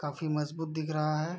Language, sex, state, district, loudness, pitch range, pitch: Hindi, male, Bihar, Araria, -33 LUFS, 150-160 Hz, 155 Hz